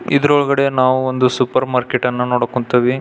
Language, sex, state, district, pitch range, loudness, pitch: Kannada, male, Karnataka, Belgaum, 125-135 Hz, -16 LUFS, 130 Hz